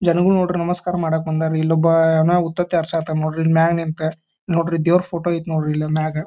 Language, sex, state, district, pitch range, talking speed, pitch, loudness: Kannada, male, Karnataka, Dharwad, 160-170 Hz, 190 wpm, 165 Hz, -19 LUFS